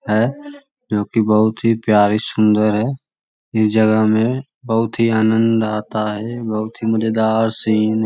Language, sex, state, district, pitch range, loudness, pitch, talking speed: Magahi, male, Bihar, Lakhisarai, 110-115 Hz, -17 LUFS, 110 Hz, 155 wpm